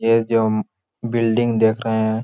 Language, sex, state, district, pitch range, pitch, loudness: Hindi, male, Jharkhand, Sahebganj, 110-115 Hz, 115 Hz, -19 LUFS